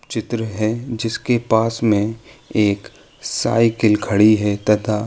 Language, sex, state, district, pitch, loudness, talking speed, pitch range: Hindi, male, Uttar Pradesh, Jalaun, 110 Hz, -18 LUFS, 130 wpm, 105-115 Hz